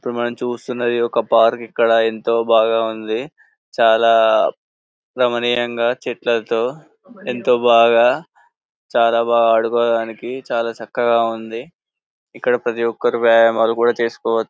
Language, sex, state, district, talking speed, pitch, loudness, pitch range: Telugu, male, Telangana, Karimnagar, 100 wpm, 115 Hz, -17 LUFS, 115-120 Hz